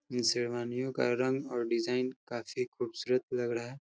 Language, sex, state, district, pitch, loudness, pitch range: Hindi, male, Uttar Pradesh, Hamirpur, 125 Hz, -33 LUFS, 120-135 Hz